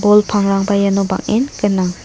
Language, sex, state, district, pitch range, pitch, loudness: Garo, female, Meghalaya, South Garo Hills, 195-210 Hz, 200 Hz, -15 LUFS